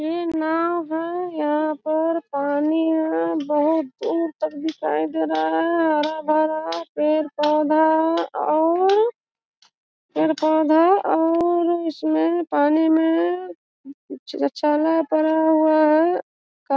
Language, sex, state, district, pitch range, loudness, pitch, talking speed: Hindi, female, Bihar, Sitamarhi, 300-330 Hz, -20 LUFS, 315 Hz, 105 wpm